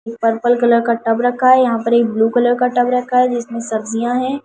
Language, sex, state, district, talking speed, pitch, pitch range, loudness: Hindi, female, Delhi, New Delhi, 245 wpm, 240 Hz, 230-250 Hz, -15 LUFS